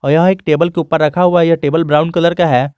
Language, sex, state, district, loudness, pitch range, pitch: Hindi, male, Jharkhand, Garhwa, -13 LUFS, 150-170 Hz, 165 Hz